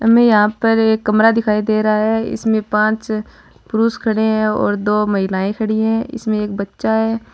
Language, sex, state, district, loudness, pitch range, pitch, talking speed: Marwari, female, Rajasthan, Churu, -16 LUFS, 210-225 Hz, 220 Hz, 190 wpm